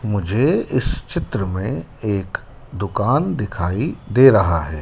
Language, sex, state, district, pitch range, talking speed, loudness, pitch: Hindi, male, Madhya Pradesh, Dhar, 95-130 Hz, 125 wpm, -19 LUFS, 105 Hz